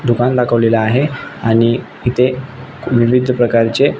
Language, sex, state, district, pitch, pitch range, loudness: Marathi, male, Maharashtra, Nagpur, 125 Hz, 115-125 Hz, -14 LUFS